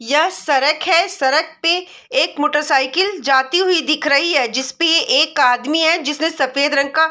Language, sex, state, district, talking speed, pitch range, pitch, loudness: Hindi, female, Bihar, Darbhanga, 195 wpm, 275-335 Hz, 305 Hz, -16 LUFS